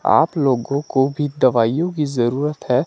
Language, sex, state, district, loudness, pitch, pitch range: Hindi, male, Himachal Pradesh, Shimla, -19 LUFS, 135 Hz, 125-150 Hz